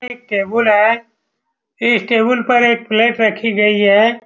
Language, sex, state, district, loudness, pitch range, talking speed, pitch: Hindi, male, Bihar, Saran, -14 LUFS, 215-235 Hz, 185 wpm, 230 Hz